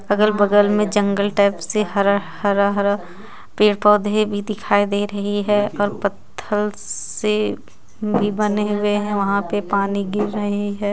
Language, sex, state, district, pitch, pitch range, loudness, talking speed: Hindi, female, Jharkhand, Ranchi, 205 Hz, 200-210 Hz, -19 LUFS, 155 wpm